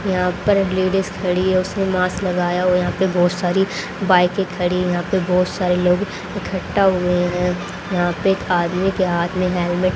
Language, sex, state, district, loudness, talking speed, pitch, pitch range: Hindi, female, Haryana, Rohtak, -19 LUFS, 185 wpm, 180 Hz, 180-190 Hz